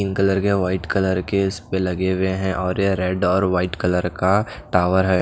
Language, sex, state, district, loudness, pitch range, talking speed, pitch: Hindi, male, Odisha, Nuapada, -20 LUFS, 90-95 Hz, 220 wpm, 95 Hz